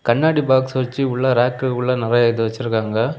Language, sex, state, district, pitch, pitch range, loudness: Tamil, male, Tamil Nadu, Kanyakumari, 125 Hz, 120-130 Hz, -18 LUFS